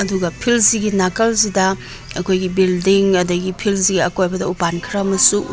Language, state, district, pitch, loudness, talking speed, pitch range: Manipuri, Manipur, Imphal West, 190 Hz, -16 LUFS, 150 wpm, 180-200 Hz